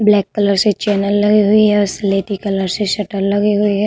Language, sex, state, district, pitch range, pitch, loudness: Hindi, female, Uttar Pradesh, Budaun, 200-210 Hz, 205 Hz, -15 LUFS